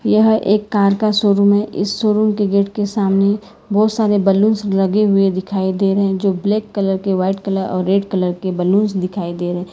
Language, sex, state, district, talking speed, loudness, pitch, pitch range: Hindi, female, Karnataka, Bangalore, 210 wpm, -16 LUFS, 200 Hz, 190-210 Hz